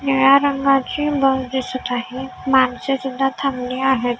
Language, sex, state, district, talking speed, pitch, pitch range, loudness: Marathi, female, Maharashtra, Gondia, 115 wpm, 265 Hz, 255-275 Hz, -18 LUFS